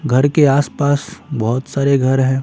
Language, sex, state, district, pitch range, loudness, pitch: Hindi, male, Bihar, Patna, 130-145 Hz, -16 LUFS, 140 Hz